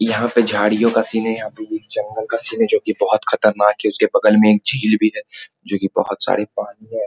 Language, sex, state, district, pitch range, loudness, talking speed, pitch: Hindi, male, Bihar, Muzaffarpur, 105-135 Hz, -17 LUFS, 265 wpm, 110 Hz